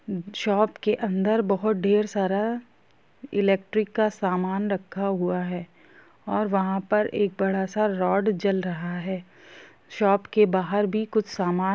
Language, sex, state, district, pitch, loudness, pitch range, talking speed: Hindi, female, Jharkhand, Jamtara, 200 Hz, -25 LUFS, 190-215 Hz, 145 wpm